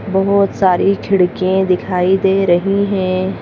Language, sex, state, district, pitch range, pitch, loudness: Hindi, female, Madhya Pradesh, Bhopal, 185-195 Hz, 190 Hz, -14 LUFS